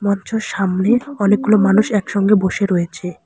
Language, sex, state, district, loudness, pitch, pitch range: Bengali, female, West Bengal, Alipurduar, -16 LUFS, 200 Hz, 190-215 Hz